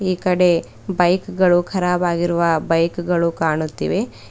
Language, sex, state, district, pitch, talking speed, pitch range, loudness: Kannada, female, Karnataka, Bidar, 175 Hz, 100 wpm, 170-180 Hz, -18 LUFS